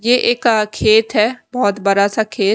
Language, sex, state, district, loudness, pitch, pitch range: Hindi, female, Punjab, Kapurthala, -15 LUFS, 220 Hz, 205-235 Hz